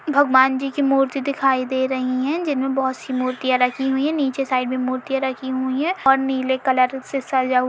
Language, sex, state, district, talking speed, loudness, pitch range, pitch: Hindi, female, Uttar Pradesh, Etah, 235 wpm, -20 LUFS, 260-270 Hz, 265 Hz